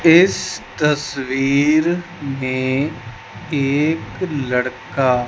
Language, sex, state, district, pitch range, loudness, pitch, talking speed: Hindi, male, Chandigarh, Chandigarh, 130-155 Hz, -19 LUFS, 140 Hz, 70 wpm